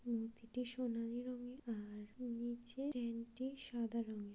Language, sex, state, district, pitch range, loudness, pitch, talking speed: Bengali, female, West Bengal, Kolkata, 230-250 Hz, -45 LUFS, 235 Hz, 140 wpm